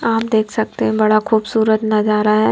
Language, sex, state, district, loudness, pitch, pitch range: Hindi, female, Himachal Pradesh, Shimla, -16 LUFS, 220 Hz, 215-220 Hz